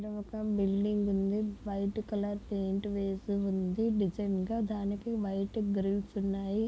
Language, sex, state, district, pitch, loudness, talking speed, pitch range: Telugu, female, Andhra Pradesh, Guntur, 200 Hz, -33 LUFS, 110 wpm, 195-210 Hz